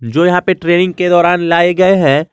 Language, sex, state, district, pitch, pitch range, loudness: Hindi, male, Jharkhand, Garhwa, 175 Hz, 170-180 Hz, -11 LUFS